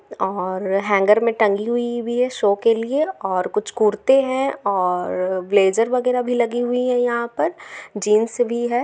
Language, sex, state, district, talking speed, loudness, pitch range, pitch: Hindi, female, Bihar, Gaya, 185 wpm, -20 LUFS, 200-245 Hz, 230 Hz